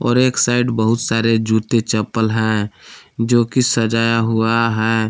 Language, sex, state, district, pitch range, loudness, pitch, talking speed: Hindi, male, Jharkhand, Palamu, 110-120 Hz, -16 LUFS, 115 Hz, 155 wpm